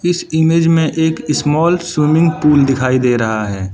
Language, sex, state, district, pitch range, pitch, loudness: Hindi, male, Arunachal Pradesh, Lower Dibang Valley, 130-165 Hz, 155 Hz, -14 LUFS